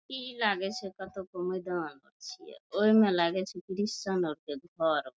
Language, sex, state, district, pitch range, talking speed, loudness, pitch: Maithili, female, Bihar, Madhepura, 175-210 Hz, 185 wpm, -31 LUFS, 190 Hz